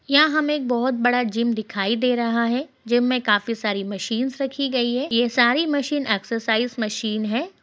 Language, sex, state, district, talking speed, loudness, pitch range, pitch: Hindi, female, Bihar, Bhagalpur, 190 wpm, -21 LUFS, 225-265 Hz, 240 Hz